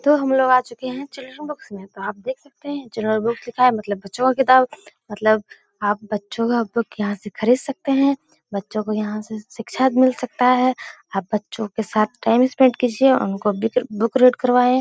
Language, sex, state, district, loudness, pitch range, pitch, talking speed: Hindi, female, Bihar, Darbhanga, -20 LUFS, 215-260 Hz, 240 Hz, 205 wpm